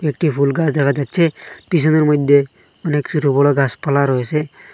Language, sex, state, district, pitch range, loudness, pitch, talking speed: Bengali, male, Assam, Hailakandi, 140-155 Hz, -16 LUFS, 145 Hz, 150 wpm